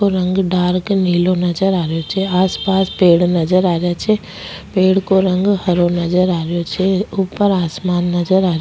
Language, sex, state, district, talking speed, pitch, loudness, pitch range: Rajasthani, female, Rajasthan, Nagaur, 190 wpm, 185 Hz, -16 LUFS, 175-190 Hz